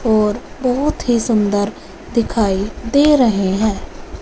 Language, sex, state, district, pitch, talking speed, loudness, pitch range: Hindi, female, Punjab, Fazilka, 225 Hz, 115 wpm, -17 LUFS, 205-250 Hz